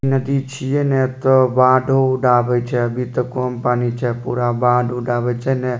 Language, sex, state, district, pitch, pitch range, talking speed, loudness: Maithili, male, Bihar, Supaul, 125 Hz, 120-130 Hz, 185 wpm, -17 LUFS